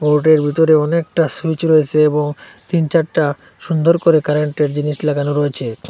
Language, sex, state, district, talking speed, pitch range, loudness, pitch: Bengali, male, Assam, Hailakandi, 140 wpm, 150-160 Hz, -15 LUFS, 150 Hz